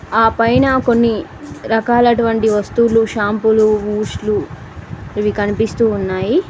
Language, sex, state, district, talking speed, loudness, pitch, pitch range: Telugu, female, Telangana, Mahabubabad, 110 wpm, -15 LUFS, 225 Hz, 210-235 Hz